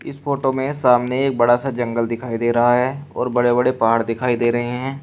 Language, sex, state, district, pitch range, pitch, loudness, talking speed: Hindi, male, Uttar Pradesh, Shamli, 120-135 Hz, 125 Hz, -19 LUFS, 240 wpm